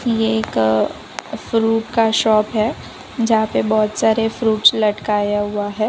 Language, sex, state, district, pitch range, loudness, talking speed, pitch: Hindi, female, Gujarat, Valsad, 210-225 Hz, -17 LUFS, 145 wpm, 220 Hz